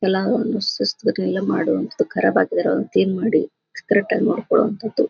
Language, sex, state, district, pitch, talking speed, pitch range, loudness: Kannada, female, Karnataka, Gulbarga, 215 Hz, 140 wpm, 195-225 Hz, -20 LUFS